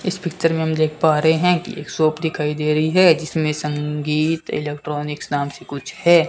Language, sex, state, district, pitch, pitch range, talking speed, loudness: Hindi, male, Rajasthan, Bikaner, 155 Hz, 150-165 Hz, 210 wpm, -19 LUFS